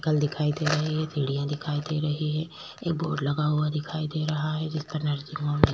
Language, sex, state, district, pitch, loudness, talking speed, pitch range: Hindi, female, Chhattisgarh, Korba, 155 Hz, -28 LUFS, 230 wpm, 150-155 Hz